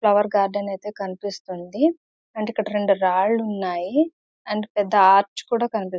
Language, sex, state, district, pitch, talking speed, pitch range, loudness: Telugu, female, Andhra Pradesh, Visakhapatnam, 205 Hz, 140 wpm, 195-215 Hz, -22 LUFS